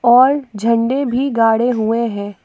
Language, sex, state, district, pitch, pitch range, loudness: Hindi, female, Jharkhand, Palamu, 235 Hz, 225-255 Hz, -15 LUFS